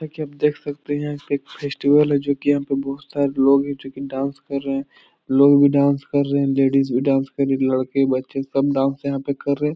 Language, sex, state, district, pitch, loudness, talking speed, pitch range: Hindi, male, Bihar, Jahanabad, 140 Hz, -20 LUFS, 245 wpm, 135-145 Hz